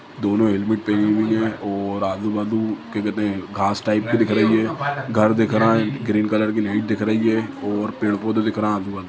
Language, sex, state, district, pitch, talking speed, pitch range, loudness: Hindi, male, Bihar, Lakhisarai, 105 Hz, 220 wpm, 105-110 Hz, -20 LUFS